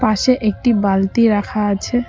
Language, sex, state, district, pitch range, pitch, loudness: Bengali, female, West Bengal, Cooch Behar, 205-245 Hz, 215 Hz, -16 LUFS